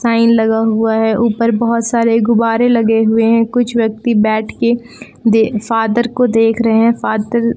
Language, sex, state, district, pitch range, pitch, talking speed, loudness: Hindi, female, Jharkhand, Palamu, 225-235 Hz, 230 Hz, 175 wpm, -13 LUFS